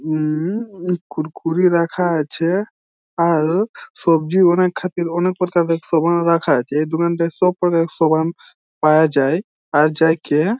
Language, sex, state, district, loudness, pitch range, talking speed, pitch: Bengali, male, West Bengal, Jhargram, -18 LUFS, 160-180 Hz, 100 wpm, 170 Hz